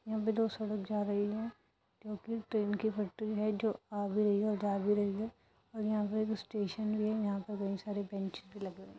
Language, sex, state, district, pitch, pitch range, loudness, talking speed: Hindi, female, Uttar Pradesh, Etah, 210 Hz, 205-215 Hz, -36 LUFS, 235 wpm